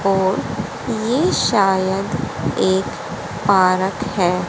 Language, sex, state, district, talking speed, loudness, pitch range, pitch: Hindi, female, Haryana, Jhajjar, 80 wpm, -19 LUFS, 185-205 Hz, 190 Hz